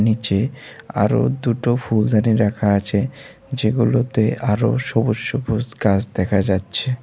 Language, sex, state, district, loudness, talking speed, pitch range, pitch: Bengali, male, Tripura, West Tripura, -19 LUFS, 110 wpm, 105-125 Hz, 115 Hz